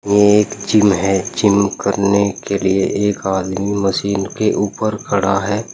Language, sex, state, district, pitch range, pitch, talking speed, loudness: Hindi, male, Uttar Pradesh, Saharanpur, 95-105 Hz, 100 Hz, 155 wpm, -16 LUFS